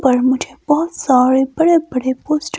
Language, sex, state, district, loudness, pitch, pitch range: Hindi, female, Himachal Pradesh, Shimla, -15 LUFS, 270 Hz, 260-320 Hz